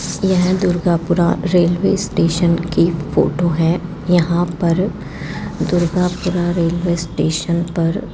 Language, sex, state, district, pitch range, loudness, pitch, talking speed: Hindi, female, Rajasthan, Jaipur, 170-180 Hz, -17 LUFS, 175 Hz, 105 wpm